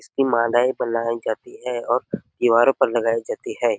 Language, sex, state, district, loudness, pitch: Hindi, male, Chhattisgarh, Sarguja, -21 LUFS, 125 Hz